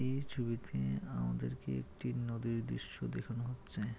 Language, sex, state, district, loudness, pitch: Bengali, male, West Bengal, Malda, -40 LUFS, 105 Hz